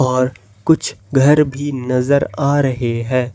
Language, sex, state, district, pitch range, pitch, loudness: Hindi, male, Jharkhand, Ranchi, 125-140 Hz, 130 Hz, -16 LUFS